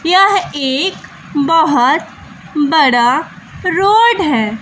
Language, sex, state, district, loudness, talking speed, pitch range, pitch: Hindi, female, Bihar, West Champaran, -13 LUFS, 80 wpm, 270-370 Hz, 310 Hz